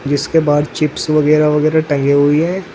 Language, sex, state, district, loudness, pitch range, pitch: Hindi, male, Uttar Pradesh, Saharanpur, -14 LUFS, 145-155 Hz, 150 Hz